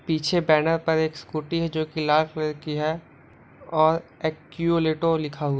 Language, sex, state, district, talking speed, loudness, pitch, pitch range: Hindi, male, Andhra Pradesh, Guntur, 170 wpm, -24 LUFS, 155 Hz, 155-165 Hz